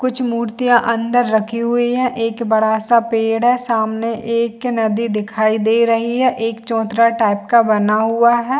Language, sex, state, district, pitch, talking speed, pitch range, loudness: Hindi, female, Chhattisgarh, Bilaspur, 230 Hz, 175 wpm, 220-235 Hz, -16 LUFS